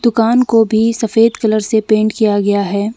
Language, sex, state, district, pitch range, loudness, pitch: Hindi, female, Jharkhand, Deoghar, 215-225 Hz, -13 LUFS, 220 Hz